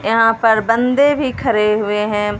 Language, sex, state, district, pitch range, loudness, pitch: Hindi, female, Punjab, Fazilka, 210-235 Hz, -15 LUFS, 225 Hz